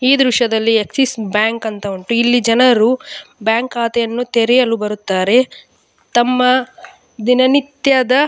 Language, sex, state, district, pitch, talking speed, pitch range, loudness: Kannada, female, Karnataka, Dakshina Kannada, 240 Hz, 115 wpm, 225-255 Hz, -15 LUFS